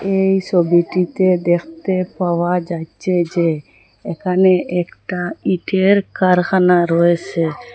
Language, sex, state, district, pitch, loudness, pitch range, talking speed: Bengali, female, Assam, Hailakandi, 180 Hz, -17 LUFS, 170-185 Hz, 85 wpm